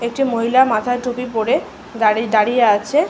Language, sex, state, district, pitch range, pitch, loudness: Bengali, female, West Bengal, Malda, 220-250 Hz, 235 Hz, -17 LUFS